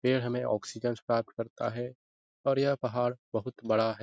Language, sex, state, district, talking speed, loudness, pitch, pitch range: Hindi, male, Bihar, Lakhisarai, 195 wpm, -32 LUFS, 120 Hz, 110-125 Hz